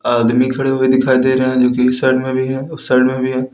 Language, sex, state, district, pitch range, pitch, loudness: Hindi, male, Uttar Pradesh, Lalitpur, 125-130 Hz, 130 Hz, -15 LUFS